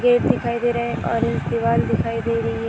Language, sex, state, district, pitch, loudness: Hindi, female, Jharkhand, Sahebganj, 175 Hz, -21 LUFS